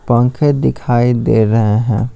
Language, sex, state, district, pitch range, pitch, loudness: Hindi, male, Bihar, Patna, 115-125 Hz, 120 Hz, -13 LUFS